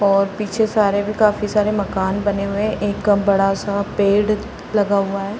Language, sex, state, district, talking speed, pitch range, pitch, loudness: Hindi, female, Uttar Pradesh, Varanasi, 180 wpm, 200-210 Hz, 205 Hz, -18 LUFS